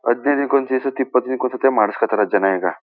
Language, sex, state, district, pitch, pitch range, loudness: Kannada, male, Karnataka, Chamarajanagar, 125 Hz, 105-135 Hz, -18 LUFS